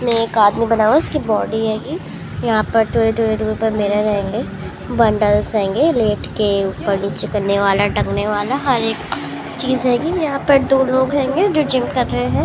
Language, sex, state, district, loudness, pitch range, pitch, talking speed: Hindi, female, Maharashtra, Pune, -17 LUFS, 205-260 Hz, 220 Hz, 200 wpm